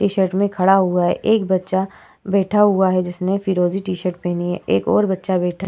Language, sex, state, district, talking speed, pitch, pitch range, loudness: Hindi, female, Uttar Pradesh, Etah, 210 wpm, 190 Hz, 180-195 Hz, -18 LUFS